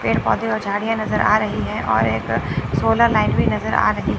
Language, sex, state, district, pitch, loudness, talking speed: Hindi, female, Chandigarh, Chandigarh, 145 Hz, -19 LUFS, 230 wpm